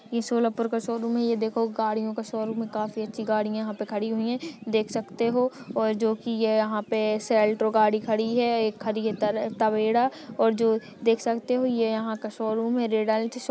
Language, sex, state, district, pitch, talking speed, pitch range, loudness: Hindi, female, Maharashtra, Solapur, 225 Hz, 200 wpm, 220-230 Hz, -26 LUFS